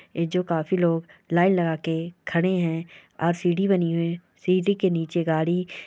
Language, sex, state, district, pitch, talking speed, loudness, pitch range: Hindi, female, Chhattisgarh, Korba, 170 Hz, 175 wpm, -24 LUFS, 165-180 Hz